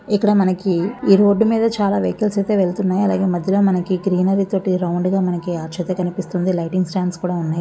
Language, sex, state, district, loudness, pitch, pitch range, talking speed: Telugu, female, Andhra Pradesh, Visakhapatnam, -18 LUFS, 185 Hz, 180-200 Hz, 205 wpm